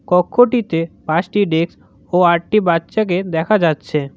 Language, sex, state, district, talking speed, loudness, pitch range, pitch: Bengali, male, West Bengal, Cooch Behar, 115 wpm, -16 LUFS, 165-205 Hz, 175 Hz